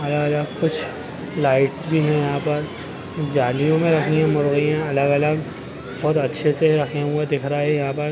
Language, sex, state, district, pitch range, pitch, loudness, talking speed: Hindi, male, Bihar, Gaya, 145-155 Hz, 150 Hz, -20 LUFS, 170 wpm